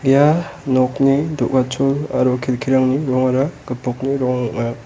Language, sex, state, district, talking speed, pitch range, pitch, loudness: Garo, male, Meghalaya, West Garo Hills, 110 wpm, 125-140 Hz, 130 Hz, -18 LUFS